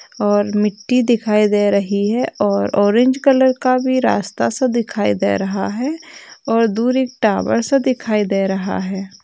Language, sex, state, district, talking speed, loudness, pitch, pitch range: Hindi, female, Bihar, Jamui, 160 wpm, -17 LUFS, 220 Hz, 200-255 Hz